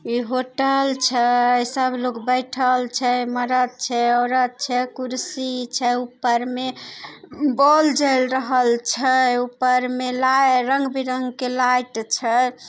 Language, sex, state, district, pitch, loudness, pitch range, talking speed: Maithili, female, Bihar, Samastipur, 250 Hz, -20 LUFS, 245-260 Hz, 130 wpm